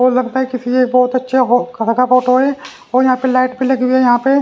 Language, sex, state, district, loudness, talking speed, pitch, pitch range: Hindi, male, Haryana, Jhajjar, -14 LUFS, 270 wpm, 255 Hz, 250-260 Hz